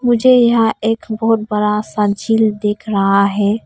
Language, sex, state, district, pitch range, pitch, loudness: Hindi, female, Arunachal Pradesh, Papum Pare, 210-225 Hz, 215 Hz, -15 LUFS